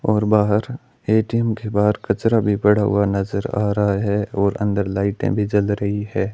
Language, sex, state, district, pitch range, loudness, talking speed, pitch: Hindi, male, Rajasthan, Bikaner, 100-105 Hz, -19 LUFS, 190 wpm, 105 Hz